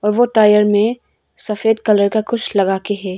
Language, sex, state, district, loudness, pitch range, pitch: Hindi, female, Arunachal Pradesh, Longding, -15 LUFS, 205-225 Hz, 210 Hz